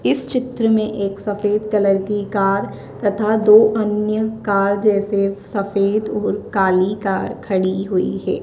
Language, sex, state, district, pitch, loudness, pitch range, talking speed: Hindi, female, Madhya Pradesh, Dhar, 205 Hz, -18 LUFS, 195-215 Hz, 140 wpm